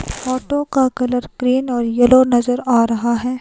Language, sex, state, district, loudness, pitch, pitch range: Hindi, female, Himachal Pradesh, Shimla, -16 LUFS, 250 Hz, 240-255 Hz